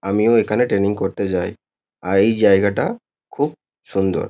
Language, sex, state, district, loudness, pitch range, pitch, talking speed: Bengali, male, West Bengal, Kolkata, -18 LUFS, 95-125 Hz, 105 Hz, 140 wpm